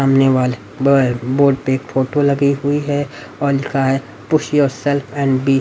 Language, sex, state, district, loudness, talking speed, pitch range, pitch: Hindi, male, Haryana, Rohtak, -16 LUFS, 205 wpm, 130-145 Hz, 135 Hz